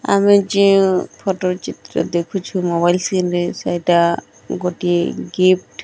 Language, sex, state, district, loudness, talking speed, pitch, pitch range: Odia, male, Odisha, Nuapada, -17 LUFS, 115 wpm, 180 Hz, 175-190 Hz